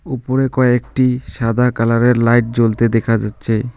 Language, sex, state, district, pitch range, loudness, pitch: Bengali, male, West Bengal, Alipurduar, 115-125 Hz, -15 LUFS, 120 Hz